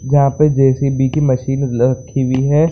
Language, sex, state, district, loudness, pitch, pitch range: Hindi, male, Bihar, Saran, -15 LUFS, 135 Hz, 130-140 Hz